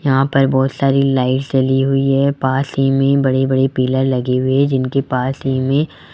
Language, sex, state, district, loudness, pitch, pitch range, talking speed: Hindi, male, Rajasthan, Jaipur, -16 LUFS, 135 Hz, 130-135 Hz, 215 wpm